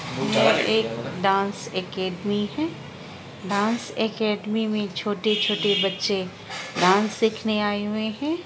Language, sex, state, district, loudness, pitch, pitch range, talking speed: Hindi, female, Bihar, Araria, -24 LUFS, 205 Hz, 185-215 Hz, 115 wpm